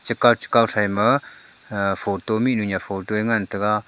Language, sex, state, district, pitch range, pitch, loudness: Wancho, male, Arunachal Pradesh, Longding, 100-115 Hz, 105 Hz, -21 LUFS